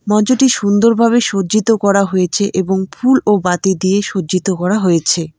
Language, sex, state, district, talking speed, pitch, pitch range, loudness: Bengali, female, West Bengal, Alipurduar, 145 wpm, 200 Hz, 185-215 Hz, -14 LUFS